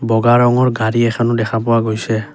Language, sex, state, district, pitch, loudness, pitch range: Assamese, male, Assam, Kamrup Metropolitan, 115 Hz, -15 LUFS, 110-120 Hz